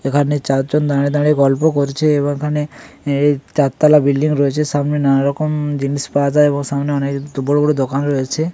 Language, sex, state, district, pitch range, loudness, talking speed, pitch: Bengali, male, West Bengal, Paschim Medinipur, 140-150 Hz, -16 LUFS, 170 wpm, 145 Hz